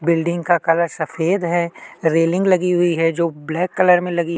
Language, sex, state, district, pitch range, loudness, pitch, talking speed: Hindi, male, Chhattisgarh, Kabirdham, 165-175 Hz, -18 LUFS, 170 Hz, 205 wpm